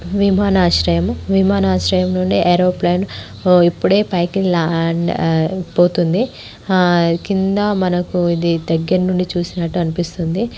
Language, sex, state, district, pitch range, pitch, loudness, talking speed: Telugu, female, Telangana, Karimnagar, 165-185 Hz, 175 Hz, -16 LUFS, 85 wpm